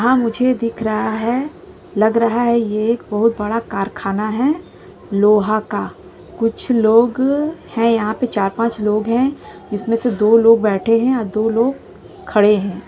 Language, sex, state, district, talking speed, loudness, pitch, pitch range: Hindi, female, Bihar, Jahanabad, 170 wpm, -17 LUFS, 225 Hz, 210-240 Hz